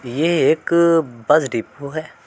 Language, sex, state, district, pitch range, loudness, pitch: Hindi, male, Uttar Pradesh, Muzaffarnagar, 130-165 Hz, -18 LUFS, 155 Hz